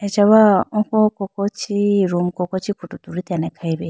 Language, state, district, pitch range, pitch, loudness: Idu Mishmi, Arunachal Pradesh, Lower Dibang Valley, 180-205 Hz, 200 Hz, -18 LUFS